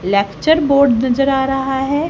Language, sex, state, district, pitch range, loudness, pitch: Hindi, female, Haryana, Charkhi Dadri, 255-280 Hz, -15 LUFS, 270 Hz